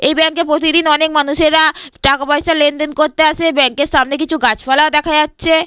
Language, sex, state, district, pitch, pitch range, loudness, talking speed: Bengali, female, Jharkhand, Sahebganj, 305 Hz, 290-315 Hz, -13 LUFS, 190 wpm